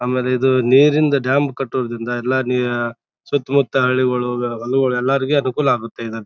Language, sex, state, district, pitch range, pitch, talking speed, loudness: Kannada, male, Karnataka, Bijapur, 120-135 Hz, 130 Hz, 145 wpm, -18 LUFS